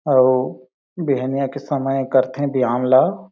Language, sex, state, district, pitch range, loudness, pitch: Chhattisgarhi, male, Chhattisgarh, Sarguja, 130-140 Hz, -19 LUFS, 130 Hz